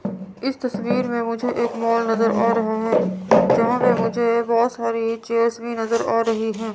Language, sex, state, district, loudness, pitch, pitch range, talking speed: Hindi, female, Chandigarh, Chandigarh, -20 LUFS, 230 Hz, 225-235 Hz, 185 wpm